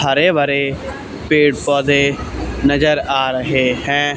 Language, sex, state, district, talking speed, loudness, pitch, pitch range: Hindi, male, Haryana, Charkhi Dadri, 115 wpm, -15 LUFS, 140 Hz, 135-145 Hz